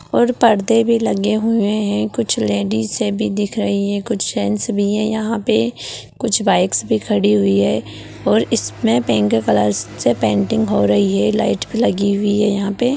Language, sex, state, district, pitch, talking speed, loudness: Magahi, female, Bihar, Gaya, 200 Hz, 190 wpm, -17 LUFS